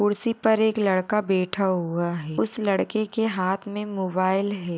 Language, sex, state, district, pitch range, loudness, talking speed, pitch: Hindi, female, Maharashtra, Sindhudurg, 185-210 Hz, -24 LUFS, 175 wpm, 200 Hz